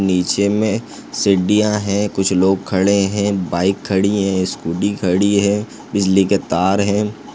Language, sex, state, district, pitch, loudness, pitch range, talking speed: Hindi, male, Chhattisgarh, Sarguja, 100 Hz, -17 LUFS, 95-100 Hz, 145 wpm